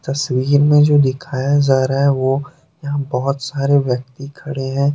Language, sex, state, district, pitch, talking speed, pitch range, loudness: Hindi, male, Jharkhand, Deoghar, 140 Hz, 170 wpm, 135-145 Hz, -16 LUFS